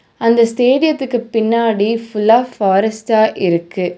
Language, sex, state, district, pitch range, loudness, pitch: Tamil, female, Tamil Nadu, Nilgiris, 210-235 Hz, -14 LUFS, 225 Hz